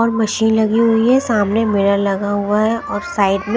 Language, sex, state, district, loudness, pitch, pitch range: Hindi, female, Punjab, Kapurthala, -16 LUFS, 215 Hz, 200-225 Hz